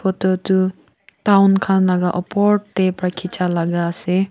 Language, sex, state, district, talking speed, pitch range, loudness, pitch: Nagamese, female, Nagaland, Kohima, 140 wpm, 180-195 Hz, -18 LUFS, 185 Hz